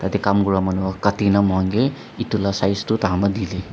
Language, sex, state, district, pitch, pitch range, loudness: Nagamese, male, Nagaland, Dimapur, 100 Hz, 95-105 Hz, -20 LUFS